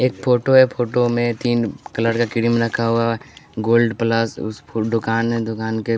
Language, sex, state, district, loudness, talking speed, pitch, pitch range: Hindi, male, Bihar, West Champaran, -19 LUFS, 190 wpm, 115 Hz, 115-120 Hz